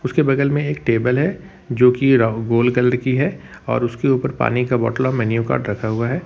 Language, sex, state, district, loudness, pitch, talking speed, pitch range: Hindi, male, Jharkhand, Ranchi, -18 LUFS, 125 Hz, 230 wpm, 120-135 Hz